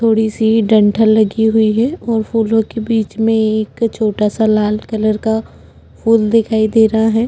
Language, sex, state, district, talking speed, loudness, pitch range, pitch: Hindi, female, Chhattisgarh, Jashpur, 180 wpm, -14 LUFS, 215-225 Hz, 220 Hz